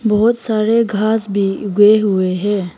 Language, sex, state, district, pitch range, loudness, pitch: Hindi, female, Arunachal Pradesh, Papum Pare, 200-220 Hz, -15 LUFS, 210 Hz